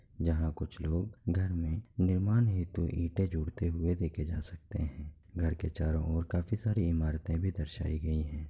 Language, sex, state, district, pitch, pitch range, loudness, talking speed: Hindi, male, Bihar, Kishanganj, 85 Hz, 80-95 Hz, -34 LUFS, 175 wpm